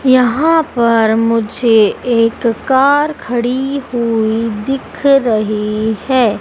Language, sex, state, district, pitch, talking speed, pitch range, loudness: Hindi, female, Madhya Pradesh, Dhar, 235 Hz, 95 wpm, 225-265 Hz, -13 LUFS